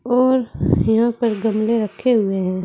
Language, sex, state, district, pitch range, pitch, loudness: Hindi, female, Uttar Pradesh, Saharanpur, 215-245 Hz, 230 Hz, -18 LUFS